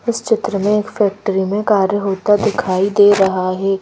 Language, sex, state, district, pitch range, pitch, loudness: Hindi, female, Madhya Pradesh, Bhopal, 195-210 Hz, 205 Hz, -15 LUFS